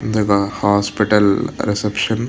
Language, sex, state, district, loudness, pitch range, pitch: Telugu, male, Andhra Pradesh, Visakhapatnam, -17 LUFS, 100-105 Hz, 105 Hz